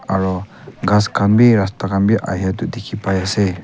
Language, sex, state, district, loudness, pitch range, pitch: Nagamese, male, Nagaland, Kohima, -17 LUFS, 95-105 Hz, 100 Hz